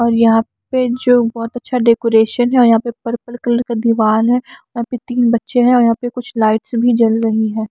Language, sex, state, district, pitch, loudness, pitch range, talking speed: Hindi, female, Maharashtra, Mumbai Suburban, 235 Hz, -15 LUFS, 225-245 Hz, 235 wpm